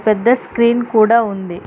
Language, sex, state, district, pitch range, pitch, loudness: Telugu, female, Telangana, Hyderabad, 210-235 Hz, 225 Hz, -14 LUFS